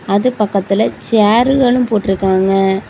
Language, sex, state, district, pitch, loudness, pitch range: Tamil, female, Tamil Nadu, Kanyakumari, 205 Hz, -13 LUFS, 195-230 Hz